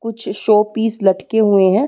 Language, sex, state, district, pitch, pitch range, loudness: Hindi, female, Uttar Pradesh, Muzaffarnagar, 215 Hz, 195-225 Hz, -15 LUFS